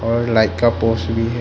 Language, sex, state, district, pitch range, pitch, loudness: Hindi, male, Arunachal Pradesh, Longding, 110-115 Hz, 115 Hz, -17 LUFS